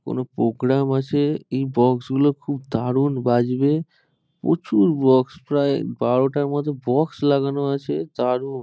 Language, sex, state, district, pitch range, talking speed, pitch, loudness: Bengali, male, West Bengal, Malda, 130-145 Hz, 125 wpm, 135 Hz, -21 LUFS